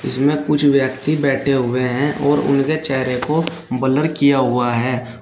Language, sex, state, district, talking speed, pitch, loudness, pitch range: Hindi, male, Uttar Pradesh, Shamli, 160 wpm, 140 Hz, -17 LUFS, 130-150 Hz